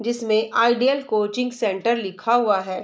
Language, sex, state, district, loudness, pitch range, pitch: Hindi, female, Bihar, Darbhanga, -21 LUFS, 210-240 Hz, 230 Hz